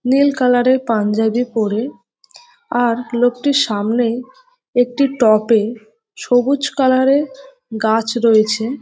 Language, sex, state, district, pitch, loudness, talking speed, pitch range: Bengali, female, West Bengal, North 24 Parganas, 245 Hz, -16 LUFS, 110 wpm, 225-275 Hz